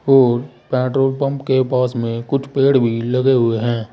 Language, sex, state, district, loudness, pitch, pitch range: Hindi, male, Uttar Pradesh, Saharanpur, -17 LUFS, 130 Hz, 120-135 Hz